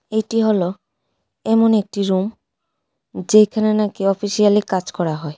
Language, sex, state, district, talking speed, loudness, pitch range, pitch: Bengali, female, Tripura, West Tripura, 125 wpm, -18 LUFS, 190-215 Hz, 205 Hz